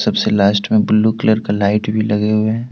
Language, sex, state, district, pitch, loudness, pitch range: Hindi, male, Jharkhand, Deoghar, 110 Hz, -15 LUFS, 105-110 Hz